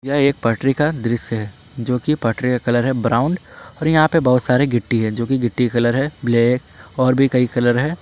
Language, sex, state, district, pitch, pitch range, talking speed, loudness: Hindi, male, Jharkhand, Palamu, 125 Hz, 120-140 Hz, 240 wpm, -18 LUFS